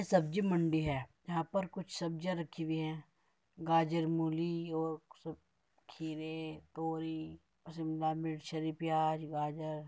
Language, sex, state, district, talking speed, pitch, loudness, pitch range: Hindi, male, Uttar Pradesh, Muzaffarnagar, 150 wpm, 160 Hz, -37 LUFS, 155-165 Hz